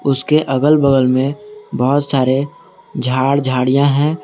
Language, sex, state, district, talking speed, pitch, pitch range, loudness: Hindi, male, Jharkhand, Garhwa, 125 wpm, 140 Hz, 130-145 Hz, -15 LUFS